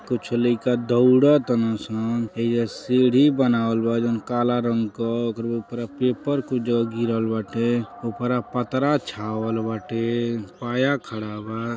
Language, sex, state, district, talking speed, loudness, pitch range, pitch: Hindi, male, Uttar Pradesh, Deoria, 140 wpm, -23 LUFS, 115-125 Hz, 120 Hz